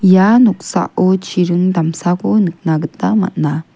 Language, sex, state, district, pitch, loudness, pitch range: Garo, female, Meghalaya, West Garo Hills, 180 Hz, -14 LUFS, 165-195 Hz